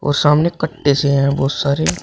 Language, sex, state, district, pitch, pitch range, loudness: Hindi, male, Uttar Pradesh, Shamli, 140 Hz, 140-145 Hz, -16 LUFS